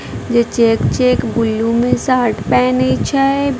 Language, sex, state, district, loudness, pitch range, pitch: Maithili, female, Bihar, Madhepura, -14 LUFS, 220-250 Hz, 230 Hz